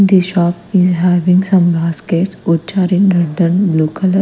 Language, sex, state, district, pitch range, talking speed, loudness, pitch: English, female, Punjab, Kapurthala, 170-190 Hz, 185 wpm, -13 LUFS, 180 Hz